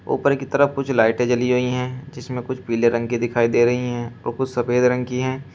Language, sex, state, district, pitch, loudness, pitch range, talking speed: Hindi, male, Uttar Pradesh, Shamli, 125 Hz, -21 LUFS, 120-130 Hz, 250 wpm